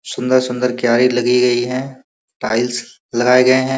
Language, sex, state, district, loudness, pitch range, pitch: Hindi, male, Uttar Pradesh, Muzaffarnagar, -16 LUFS, 120-130 Hz, 125 Hz